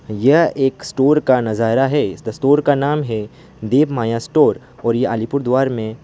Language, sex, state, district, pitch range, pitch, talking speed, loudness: Hindi, male, West Bengal, Alipurduar, 115-145 Hz, 135 Hz, 160 wpm, -17 LUFS